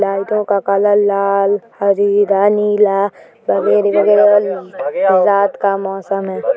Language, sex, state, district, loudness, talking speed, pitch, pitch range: Hindi, female, Uttar Pradesh, Hamirpur, -14 LUFS, 90 wpm, 200 Hz, 195-205 Hz